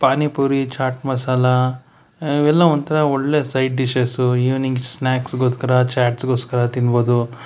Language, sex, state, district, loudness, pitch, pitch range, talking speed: Kannada, male, Karnataka, Bangalore, -18 LUFS, 130 Hz, 125-135 Hz, 105 wpm